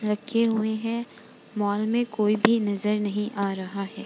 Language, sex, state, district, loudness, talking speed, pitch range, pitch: Hindi, female, Bihar, Vaishali, -25 LUFS, 180 wpm, 205-225 Hz, 210 Hz